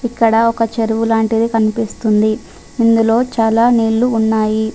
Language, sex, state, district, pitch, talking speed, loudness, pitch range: Telugu, female, Telangana, Adilabad, 225 Hz, 115 wpm, -14 LUFS, 220-230 Hz